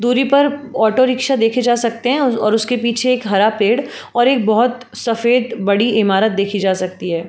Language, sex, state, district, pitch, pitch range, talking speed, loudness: Hindi, female, Uttar Pradesh, Jalaun, 235 Hz, 215-250 Hz, 195 wpm, -16 LUFS